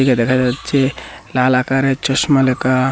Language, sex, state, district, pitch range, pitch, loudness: Bengali, male, Assam, Hailakandi, 130-135 Hz, 130 Hz, -16 LUFS